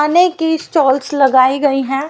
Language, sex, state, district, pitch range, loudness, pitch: Hindi, female, Haryana, Rohtak, 270-320 Hz, -13 LUFS, 285 Hz